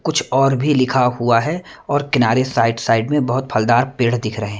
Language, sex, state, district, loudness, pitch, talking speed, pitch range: Hindi, male, Punjab, Kapurthala, -17 LUFS, 125 Hz, 220 wpm, 115-135 Hz